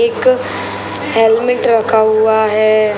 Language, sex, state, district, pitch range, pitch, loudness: Hindi, male, Bihar, Sitamarhi, 220-245 Hz, 225 Hz, -13 LUFS